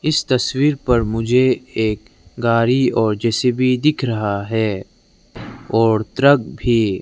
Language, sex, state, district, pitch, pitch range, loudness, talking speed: Hindi, male, Arunachal Pradesh, Lower Dibang Valley, 115 Hz, 110-130 Hz, -17 LUFS, 120 wpm